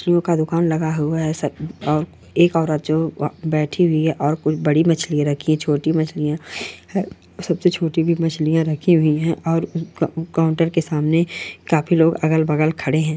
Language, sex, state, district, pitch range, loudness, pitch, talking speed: Hindi, female, Rajasthan, Churu, 155-165 Hz, -19 LUFS, 160 Hz, 155 wpm